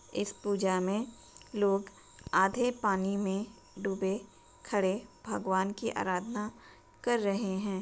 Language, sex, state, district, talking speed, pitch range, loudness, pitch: Hindi, female, Uttar Pradesh, Jalaun, 115 wpm, 190-210 Hz, -32 LUFS, 200 Hz